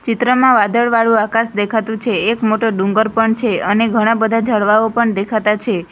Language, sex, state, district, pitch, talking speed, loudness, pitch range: Gujarati, female, Gujarat, Valsad, 225 Hz, 170 wpm, -14 LUFS, 215-230 Hz